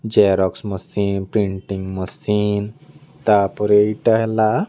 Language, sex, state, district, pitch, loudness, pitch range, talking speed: Odia, male, Odisha, Nuapada, 105 Hz, -19 LUFS, 100-110 Hz, 100 wpm